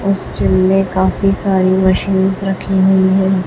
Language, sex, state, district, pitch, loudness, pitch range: Hindi, female, Chhattisgarh, Raipur, 190 Hz, -14 LUFS, 190-195 Hz